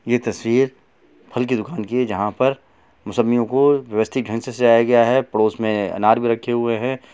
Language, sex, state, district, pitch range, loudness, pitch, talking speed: Hindi, male, Bihar, Gopalganj, 110-125 Hz, -19 LUFS, 120 Hz, 210 wpm